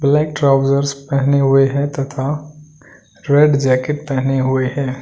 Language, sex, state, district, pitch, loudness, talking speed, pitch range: Hindi, male, Delhi, New Delhi, 140 Hz, -16 LUFS, 130 wpm, 135-145 Hz